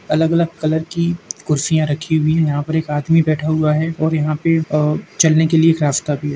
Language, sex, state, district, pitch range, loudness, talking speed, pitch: Hindi, male, Uttar Pradesh, Jalaun, 150-160 Hz, -17 LUFS, 245 wpm, 155 Hz